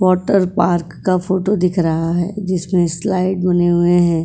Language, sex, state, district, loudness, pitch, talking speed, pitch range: Hindi, female, Uttar Pradesh, Etah, -16 LUFS, 180 Hz, 170 wpm, 175-185 Hz